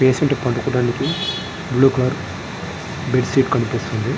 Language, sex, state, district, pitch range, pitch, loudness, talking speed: Telugu, male, Andhra Pradesh, Srikakulam, 120-140 Hz, 130 Hz, -20 LUFS, 115 wpm